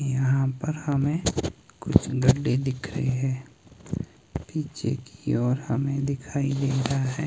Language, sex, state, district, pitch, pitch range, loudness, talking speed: Hindi, male, Himachal Pradesh, Shimla, 135 Hz, 130-140 Hz, -26 LUFS, 140 wpm